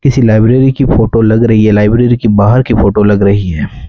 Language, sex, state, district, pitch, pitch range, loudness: Hindi, male, Rajasthan, Bikaner, 110 Hz, 105-120 Hz, -9 LUFS